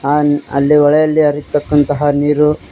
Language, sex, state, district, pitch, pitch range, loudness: Kannada, male, Karnataka, Koppal, 145 Hz, 145-150 Hz, -13 LUFS